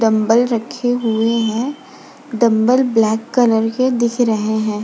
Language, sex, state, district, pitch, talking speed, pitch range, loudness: Hindi, female, Uttar Pradesh, Budaun, 230 Hz, 135 wpm, 220-250 Hz, -16 LUFS